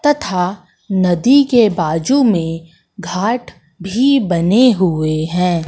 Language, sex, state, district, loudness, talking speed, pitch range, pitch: Hindi, female, Madhya Pradesh, Katni, -15 LUFS, 105 wpm, 170-235 Hz, 185 Hz